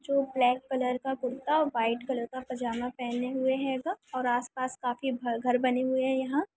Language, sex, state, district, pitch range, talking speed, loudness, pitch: Hindi, female, Chhattisgarh, Jashpur, 245-265 Hz, 200 wpm, -30 LUFS, 255 Hz